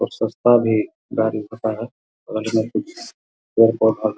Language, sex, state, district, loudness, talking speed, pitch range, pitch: Hindi, male, Bihar, Vaishali, -20 LUFS, 70 wpm, 110-115 Hz, 110 Hz